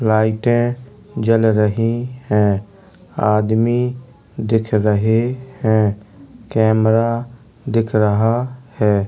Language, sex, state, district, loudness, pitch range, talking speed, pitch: Hindi, male, Uttar Pradesh, Jalaun, -17 LUFS, 105-120 Hz, 100 wpm, 115 Hz